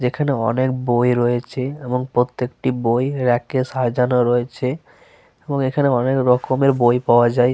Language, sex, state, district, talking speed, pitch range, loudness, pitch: Bengali, male, Jharkhand, Sahebganj, 135 wpm, 120-135 Hz, -19 LUFS, 125 Hz